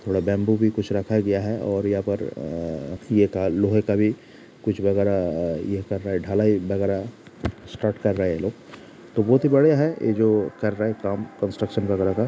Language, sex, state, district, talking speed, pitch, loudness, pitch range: Hindi, male, Uttar Pradesh, Jalaun, 225 wpm, 100 Hz, -23 LUFS, 100-110 Hz